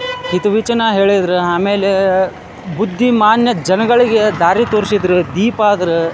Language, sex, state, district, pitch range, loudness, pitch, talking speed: Kannada, male, Karnataka, Dharwad, 185-225 Hz, -13 LUFS, 205 Hz, 90 wpm